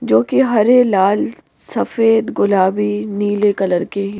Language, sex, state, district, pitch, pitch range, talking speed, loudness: Hindi, female, Madhya Pradesh, Bhopal, 205 Hz, 195-225 Hz, 130 wpm, -15 LUFS